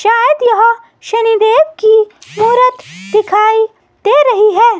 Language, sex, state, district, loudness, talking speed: Hindi, female, Himachal Pradesh, Shimla, -11 LUFS, 125 wpm